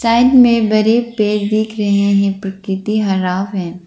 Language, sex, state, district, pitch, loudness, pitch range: Hindi, female, Arunachal Pradesh, Lower Dibang Valley, 210 Hz, -14 LUFS, 195-220 Hz